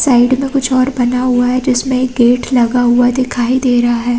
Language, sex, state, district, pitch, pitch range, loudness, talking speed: Hindi, female, Chhattisgarh, Balrampur, 250 Hz, 245-255 Hz, -12 LUFS, 230 wpm